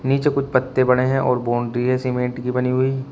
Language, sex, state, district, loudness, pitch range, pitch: Hindi, male, Uttar Pradesh, Shamli, -20 LUFS, 125-130 Hz, 130 Hz